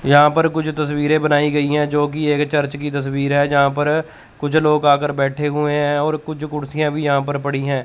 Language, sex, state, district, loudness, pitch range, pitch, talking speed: Hindi, male, Chandigarh, Chandigarh, -18 LUFS, 145-150 Hz, 145 Hz, 230 wpm